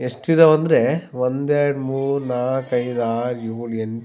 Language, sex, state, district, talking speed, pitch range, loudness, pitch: Kannada, male, Karnataka, Raichur, 150 wpm, 120-145 Hz, -20 LUFS, 125 Hz